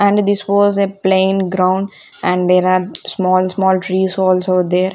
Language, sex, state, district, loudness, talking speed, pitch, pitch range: English, female, Punjab, Kapurthala, -15 LUFS, 170 wpm, 190 Hz, 185-195 Hz